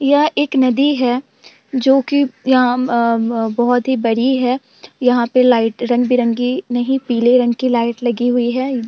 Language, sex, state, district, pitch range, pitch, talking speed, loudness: Hindi, female, Bihar, Vaishali, 240-260 Hz, 250 Hz, 170 wpm, -15 LUFS